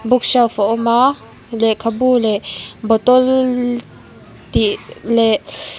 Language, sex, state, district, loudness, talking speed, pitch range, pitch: Mizo, female, Mizoram, Aizawl, -15 LUFS, 105 wpm, 215-250 Hz, 230 Hz